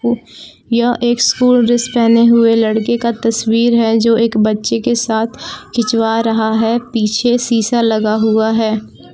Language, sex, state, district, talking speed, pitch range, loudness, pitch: Hindi, female, Jharkhand, Palamu, 150 wpm, 220-235 Hz, -13 LUFS, 230 Hz